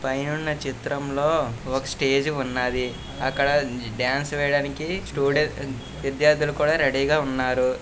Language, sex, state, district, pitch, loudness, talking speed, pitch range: Telugu, male, Andhra Pradesh, Visakhapatnam, 140 Hz, -24 LUFS, 105 wpm, 130-150 Hz